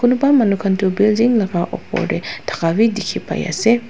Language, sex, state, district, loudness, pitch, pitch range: Nagamese, female, Nagaland, Dimapur, -17 LUFS, 215 Hz, 190-235 Hz